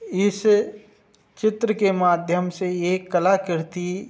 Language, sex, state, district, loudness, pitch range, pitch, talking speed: Hindi, male, Uttar Pradesh, Budaun, -21 LUFS, 180-210 Hz, 190 Hz, 115 wpm